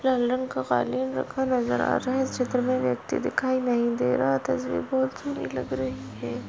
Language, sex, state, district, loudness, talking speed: Hindi, female, Chhattisgarh, Balrampur, -26 LUFS, 210 wpm